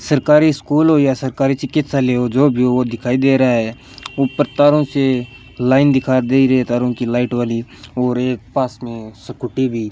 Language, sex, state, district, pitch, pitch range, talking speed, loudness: Hindi, male, Rajasthan, Bikaner, 130 Hz, 120-135 Hz, 195 wpm, -16 LUFS